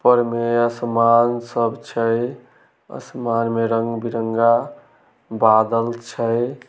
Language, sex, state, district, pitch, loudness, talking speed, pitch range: Maithili, male, Bihar, Samastipur, 115 Hz, -19 LUFS, 90 wpm, 115-120 Hz